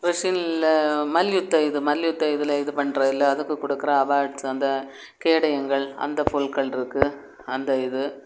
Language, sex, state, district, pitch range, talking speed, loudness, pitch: Tamil, female, Tamil Nadu, Kanyakumari, 140-155 Hz, 115 wpm, -23 LUFS, 145 Hz